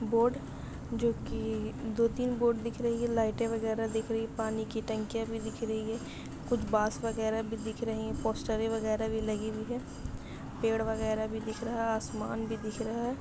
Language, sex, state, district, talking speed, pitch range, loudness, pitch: Hindi, female, Bihar, Saharsa, 205 wpm, 220-230 Hz, -33 LUFS, 225 Hz